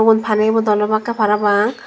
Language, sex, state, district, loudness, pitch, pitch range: Chakma, female, Tripura, Dhalai, -16 LUFS, 215 Hz, 210-225 Hz